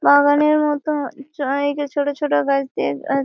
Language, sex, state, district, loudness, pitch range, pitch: Bengali, female, West Bengal, Malda, -19 LUFS, 275-295 Hz, 285 Hz